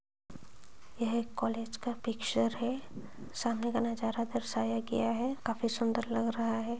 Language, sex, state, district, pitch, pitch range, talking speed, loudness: Hindi, male, Bihar, Purnia, 230 Hz, 225-235 Hz, 140 wpm, -34 LUFS